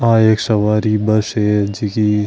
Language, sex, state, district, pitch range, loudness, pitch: Marwari, male, Rajasthan, Nagaur, 105-110 Hz, -15 LUFS, 105 Hz